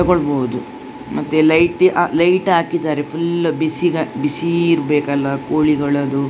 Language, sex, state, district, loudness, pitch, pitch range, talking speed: Kannada, female, Karnataka, Dakshina Kannada, -17 LUFS, 160 Hz, 145-170 Hz, 115 wpm